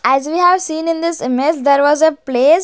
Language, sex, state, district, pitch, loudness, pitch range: English, female, Maharashtra, Gondia, 315 Hz, -14 LUFS, 275-330 Hz